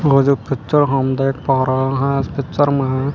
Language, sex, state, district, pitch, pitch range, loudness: Hindi, male, Chandigarh, Chandigarh, 135 Hz, 130-140 Hz, -17 LUFS